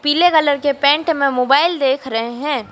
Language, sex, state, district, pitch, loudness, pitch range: Hindi, female, Madhya Pradesh, Dhar, 285 Hz, -16 LUFS, 265-300 Hz